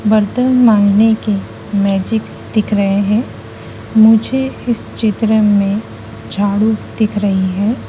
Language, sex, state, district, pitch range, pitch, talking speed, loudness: Hindi, female, Madhya Pradesh, Dhar, 200-220 Hz, 210 Hz, 115 wpm, -14 LUFS